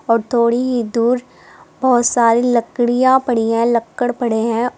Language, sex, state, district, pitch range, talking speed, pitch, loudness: Hindi, female, Uttar Pradesh, Saharanpur, 230-245 Hz, 150 wpm, 240 Hz, -16 LUFS